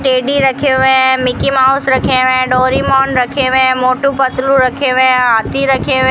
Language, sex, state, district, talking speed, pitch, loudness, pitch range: Hindi, female, Rajasthan, Bikaner, 185 wpm, 260 Hz, -11 LUFS, 255-270 Hz